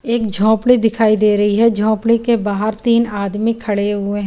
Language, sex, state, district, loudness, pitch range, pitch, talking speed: Hindi, female, Chandigarh, Chandigarh, -15 LUFS, 205-230 Hz, 220 Hz, 185 wpm